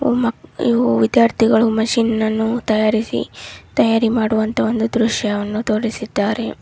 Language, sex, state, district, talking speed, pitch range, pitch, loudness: Kannada, female, Karnataka, Chamarajanagar, 110 wpm, 210-230 Hz, 220 Hz, -17 LUFS